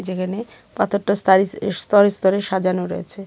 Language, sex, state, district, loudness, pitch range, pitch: Bengali, female, Tripura, West Tripura, -19 LUFS, 190-205 Hz, 195 Hz